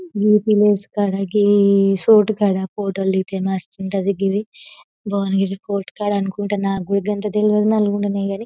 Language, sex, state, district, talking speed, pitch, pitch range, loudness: Telugu, female, Telangana, Nalgonda, 115 wpm, 200 Hz, 195-210 Hz, -18 LUFS